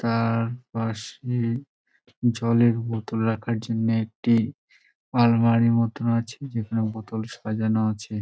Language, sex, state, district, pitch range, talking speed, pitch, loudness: Bengali, male, West Bengal, Dakshin Dinajpur, 110-115 Hz, 100 wpm, 115 Hz, -24 LUFS